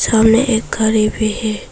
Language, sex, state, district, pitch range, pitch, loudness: Hindi, female, Arunachal Pradesh, Papum Pare, 215-225 Hz, 220 Hz, -15 LUFS